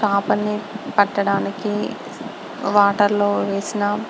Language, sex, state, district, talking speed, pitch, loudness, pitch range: Telugu, female, Andhra Pradesh, Guntur, 75 wpm, 205 Hz, -20 LUFS, 200-210 Hz